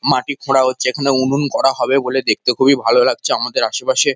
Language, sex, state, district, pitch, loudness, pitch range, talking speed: Bengali, male, West Bengal, North 24 Parganas, 135 Hz, -15 LUFS, 130-140 Hz, 200 wpm